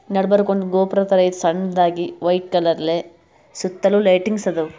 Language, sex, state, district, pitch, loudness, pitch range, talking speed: Kannada, male, Karnataka, Bijapur, 185 Hz, -18 LUFS, 170-195 Hz, 140 wpm